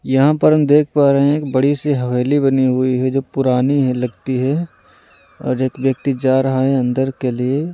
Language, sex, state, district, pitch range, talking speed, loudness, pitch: Hindi, male, Delhi, New Delhi, 130-140 Hz, 215 wpm, -16 LUFS, 135 Hz